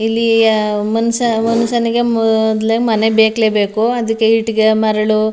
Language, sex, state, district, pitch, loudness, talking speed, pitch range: Kannada, female, Karnataka, Mysore, 225 Hz, -14 LUFS, 125 wpm, 220-230 Hz